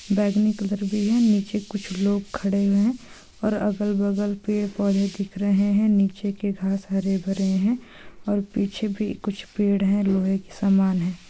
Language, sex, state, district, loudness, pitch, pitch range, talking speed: Hindi, female, Bihar, Saran, -23 LUFS, 200 Hz, 195-210 Hz, 160 wpm